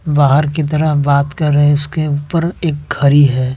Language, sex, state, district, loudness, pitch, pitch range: Hindi, male, Bihar, West Champaran, -14 LUFS, 145 Hz, 145-155 Hz